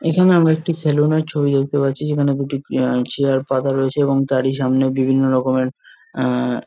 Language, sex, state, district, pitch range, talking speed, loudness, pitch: Bengali, male, West Bengal, Jalpaiguri, 130-145 Hz, 190 wpm, -18 LUFS, 135 Hz